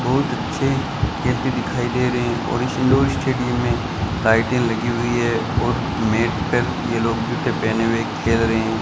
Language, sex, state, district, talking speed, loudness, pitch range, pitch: Hindi, male, Rajasthan, Bikaner, 185 wpm, -20 LUFS, 115-125 Hz, 120 Hz